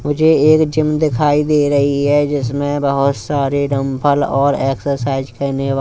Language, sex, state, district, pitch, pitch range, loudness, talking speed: Hindi, male, Punjab, Kapurthala, 140 Hz, 135-145 Hz, -15 LUFS, 155 wpm